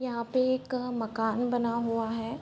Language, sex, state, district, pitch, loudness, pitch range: Hindi, female, Bihar, Sitamarhi, 235 Hz, -30 LUFS, 230-255 Hz